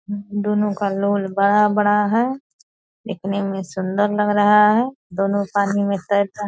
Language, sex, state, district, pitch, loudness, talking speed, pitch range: Hindi, female, Bihar, Purnia, 205 Hz, -19 LUFS, 150 wpm, 200-210 Hz